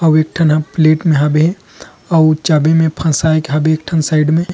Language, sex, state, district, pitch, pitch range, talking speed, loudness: Chhattisgarhi, male, Chhattisgarh, Rajnandgaon, 155 Hz, 155-160 Hz, 240 wpm, -13 LUFS